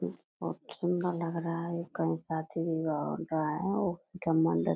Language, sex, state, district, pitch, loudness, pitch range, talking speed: Hindi, female, Bihar, Purnia, 165 Hz, -33 LUFS, 160-175 Hz, 90 wpm